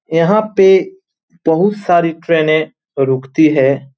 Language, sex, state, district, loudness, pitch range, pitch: Hindi, male, Jharkhand, Jamtara, -13 LUFS, 140-190 Hz, 165 Hz